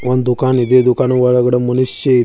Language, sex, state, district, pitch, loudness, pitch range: Kannada, male, Karnataka, Bidar, 125 Hz, -13 LUFS, 125-130 Hz